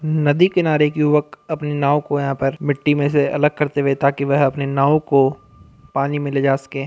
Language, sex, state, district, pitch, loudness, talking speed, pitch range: Hindi, male, Bihar, Sitamarhi, 145 Hz, -18 LUFS, 220 wpm, 140-150 Hz